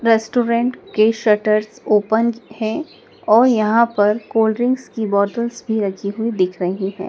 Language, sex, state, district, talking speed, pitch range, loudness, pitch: Hindi, female, Madhya Pradesh, Dhar, 150 wpm, 210-235 Hz, -18 LUFS, 220 Hz